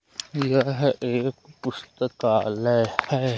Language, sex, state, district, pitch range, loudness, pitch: Hindi, male, Madhya Pradesh, Umaria, 120-140 Hz, -24 LUFS, 130 Hz